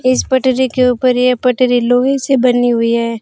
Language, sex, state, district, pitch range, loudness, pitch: Hindi, female, Rajasthan, Bikaner, 245-255 Hz, -13 LUFS, 250 Hz